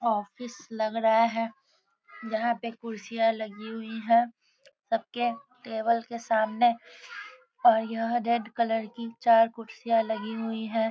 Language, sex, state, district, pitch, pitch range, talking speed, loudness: Hindi, female, Bihar, Sitamarhi, 230 Hz, 225-235 Hz, 130 wpm, -27 LUFS